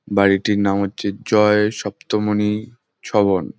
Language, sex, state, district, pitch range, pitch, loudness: Bengali, male, West Bengal, Jhargram, 100-105 Hz, 105 Hz, -19 LUFS